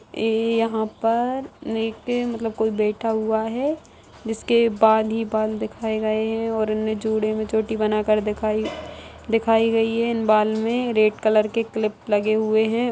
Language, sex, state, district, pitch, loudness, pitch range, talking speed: Hindi, female, Bihar, Saran, 220 Hz, -22 LUFS, 215-225 Hz, 70 wpm